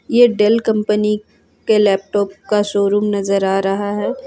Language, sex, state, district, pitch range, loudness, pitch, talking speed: Hindi, female, Jharkhand, Ranchi, 200-215 Hz, -16 LUFS, 210 Hz, 125 wpm